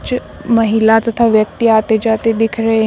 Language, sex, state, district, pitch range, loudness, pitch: Hindi, female, Uttar Pradesh, Shamli, 220-230 Hz, -13 LUFS, 225 Hz